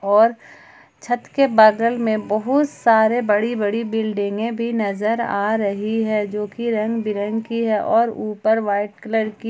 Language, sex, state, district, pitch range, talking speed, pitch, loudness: Hindi, female, Jharkhand, Palamu, 210-230 Hz, 160 wpm, 220 Hz, -19 LUFS